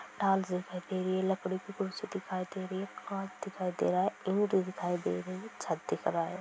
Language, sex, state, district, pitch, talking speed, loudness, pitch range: Hindi, female, Bihar, Sitamarhi, 190 Hz, 245 wpm, -34 LUFS, 180-195 Hz